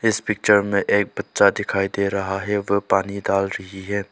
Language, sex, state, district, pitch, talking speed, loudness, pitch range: Hindi, male, Arunachal Pradesh, Lower Dibang Valley, 100 Hz, 205 wpm, -21 LUFS, 95-100 Hz